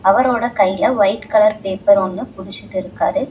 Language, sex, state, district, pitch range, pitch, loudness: Tamil, female, Tamil Nadu, Chennai, 190-220 Hz, 200 Hz, -16 LUFS